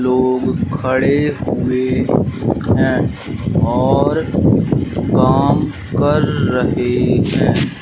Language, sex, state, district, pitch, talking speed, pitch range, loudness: Hindi, male, Madhya Pradesh, Katni, 130 Hz, 70 wpm, 125-135 Hz, -16 LUFS